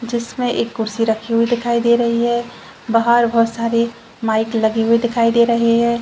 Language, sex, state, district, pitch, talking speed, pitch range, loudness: Hindi, female, Chhattisgarh, Rajnandgaon, 235 Hz, 190 wpm, 230-235 Hz, -17 LUFS